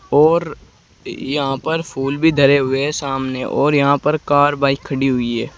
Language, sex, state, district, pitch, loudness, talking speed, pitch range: Hindi, male, Uttar Pradesh, Saharanpur, 140 Hz, -17 LUFS, 195 wpm, 135-150 Hz